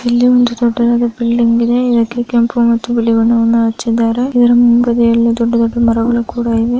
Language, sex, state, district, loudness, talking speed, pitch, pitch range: Kannada, female, Karnataka, Raichur, -12 LUFS, 150 wpm, 235 Hz, 230-240 Hz